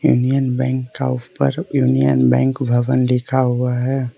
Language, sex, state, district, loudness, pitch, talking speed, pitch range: Hindi, male, Arunachal Pradesh, Lower Dibang Valley, -17 LUFS, 125 Hz, 145 wpm, 120-130 Hz